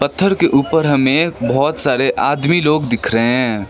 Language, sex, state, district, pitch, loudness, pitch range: Hindi, male, West Bengal, Darjeeling, 140 Hz, -15 LUFS, 125-160 Hz